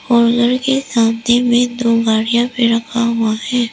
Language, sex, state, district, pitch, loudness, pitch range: Hindi, female, Arunachal Pradesh, Lower Dibang Valley, 235 Hz, -15 LUFS, 230-245 Hz